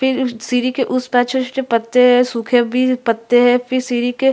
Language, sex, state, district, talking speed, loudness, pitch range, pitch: Hindi, female, Chhattisgarh, Sukma, 205 wpm, -16 LUFS, 245-255 Hz, 250 Hz